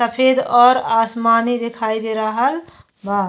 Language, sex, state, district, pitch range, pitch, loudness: Bhojpuri, female, Uttar Pradesh, Deoria, 220-245 Hz, 230 Hz, -16 LUFS